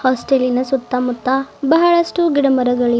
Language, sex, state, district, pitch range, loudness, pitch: Kannada, female, Karnataka, Bidar, 250-285 Hz, -16 LUFS, 265 Hz